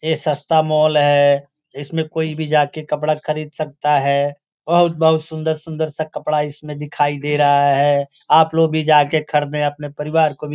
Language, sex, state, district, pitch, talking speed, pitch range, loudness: Hindi, male, Bihar, Gopalganj, 150 Hz, 190 wpm, 145-160 Hz, -17 LUFS